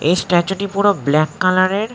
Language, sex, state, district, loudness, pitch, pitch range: Bengali, male, West Bengal, North 24 Parganas, -16 LUFS, 185 Hz, 170-200 Hz